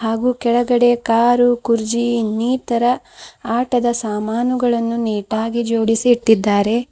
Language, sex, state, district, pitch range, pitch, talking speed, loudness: Kannada, female, Karnataka, Bidar, 225-245 Hz, 235 Hz, 85 wpm, -17 LUFS